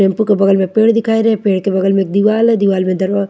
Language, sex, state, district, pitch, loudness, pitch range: Hindi, female, Haryana, Charkhi Dadri, 200 Hz, -13 LUFS, 190-220 Hz